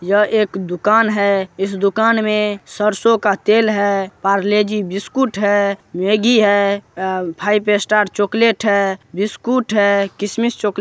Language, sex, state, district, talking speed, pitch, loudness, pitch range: Hindi, male, Bihar, Supaul, 145 wpm, 205 Hz, -16 LUFS, 200-215 Hz